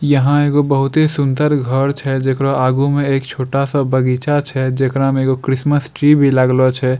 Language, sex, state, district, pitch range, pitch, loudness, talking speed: Angika, male, Bihar, Bhagalpur, 130-145 Hz, 135 Hz, -15 LUFS, 180 wpm